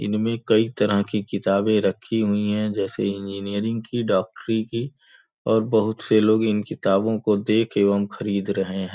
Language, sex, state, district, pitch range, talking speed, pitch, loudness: Hindi, male, Uttar Pradesh, Gorakhpur, 100-110 Hz, 170 wpm, 105 Hz, -22 LUFS